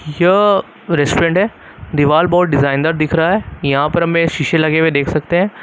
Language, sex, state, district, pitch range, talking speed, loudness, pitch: Hindi, male, Uttar Pradesh, Lucknow, 150-175 Hz, 200 wpm, -14 LUFS, 165 Hz